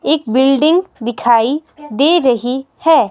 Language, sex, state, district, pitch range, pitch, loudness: Hindi, female, Himachal Pradesh, Shimla, 245-315 Hz, 275 Hz, -14 LUFS